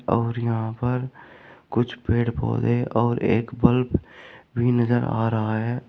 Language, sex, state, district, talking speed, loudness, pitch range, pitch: Hindi, male, Uttar Pradesh, Shamli, 145 wpm, -23 LUFS, 115-125 Hz, 120 Hz